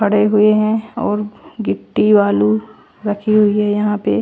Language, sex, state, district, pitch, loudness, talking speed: Hindi, female, Chandigarh, Chandigarh, 210 Hz, -15 LUFS, 155 wpm